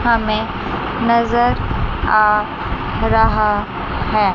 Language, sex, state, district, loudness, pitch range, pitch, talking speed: Hindi, female, Chandigarh, Chandigarh, -17 LUFS, 205-235 Hz, 215 Hz, 70 wpm